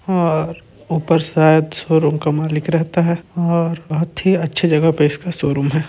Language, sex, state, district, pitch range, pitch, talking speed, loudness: Chhattisgarhi, male, Chhattisgarh, Sarguja, 155-170 Hz, 160 Hz, 175 wpm, -17 LUFS